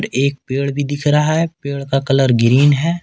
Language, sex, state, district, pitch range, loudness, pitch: Hindi, male, Jharkhand, Ranchi, 135-145 Hz, -16 LUFS, 140 Hz